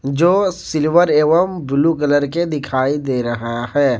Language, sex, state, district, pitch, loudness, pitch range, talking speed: Hindi, male, Jharkhand, Garhwa, 150 Hz, -17 LUFS, 135-170 Hz, 150 wpm